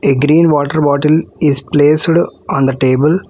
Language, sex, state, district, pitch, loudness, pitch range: English, female, Telangana, Hyderabad, 150 Hz, -12 LUFS, 140-160 Hz